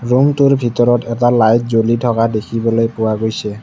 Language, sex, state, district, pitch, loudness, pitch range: Assamese, male, Assam, Kamrup Metropolitan, 115 Hz, -14 LUFS, 115-120 Hz